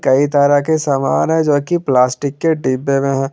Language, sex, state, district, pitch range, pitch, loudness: Hindi, male, Jharkhand, Garhwa, 135-150 Hz, 140 Hz, -15 LUFS